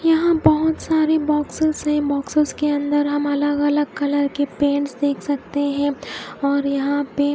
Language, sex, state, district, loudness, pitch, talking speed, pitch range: Hindi, female, Odisha, Khordha, -20 LUFS, 290 Hz, 165 wpm, 285-300 Hz